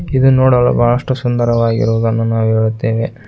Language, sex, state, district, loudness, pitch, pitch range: Kannada, male, Karnataka, Koppal, -14 LUFS, 115 Hz, 115-125 Hz